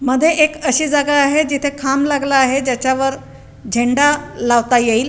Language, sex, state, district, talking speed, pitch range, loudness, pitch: Marathi, female, Maharashtra, Aurangabad, 155 wpm, 255-290 Hz, -15 LUFS, 275 Hz